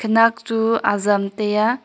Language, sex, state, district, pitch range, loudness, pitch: Wancho, female, Arunachal Pradesh, Longding, 210-230 Hz, -19 LUFS, 225 Hz